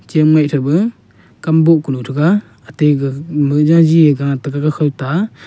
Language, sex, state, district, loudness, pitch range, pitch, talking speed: Wancho, male, Arunachal Pradesh, Longding, -14 LUFS, 140-160 Hz, 150 Hz, 120 wpm